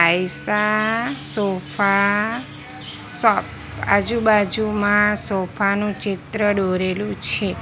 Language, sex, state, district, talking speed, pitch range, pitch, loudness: Gujarati, female, Gujarat, Valsad, 70 wpm, 195-210 Hz, 205 Hz, -19 LUFS